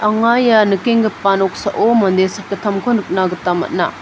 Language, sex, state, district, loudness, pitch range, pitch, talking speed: Garo, female, Meghalaya, North Garo Hills, -15 LUFS, 190-225 Hz, 200 Hz, 135 wpm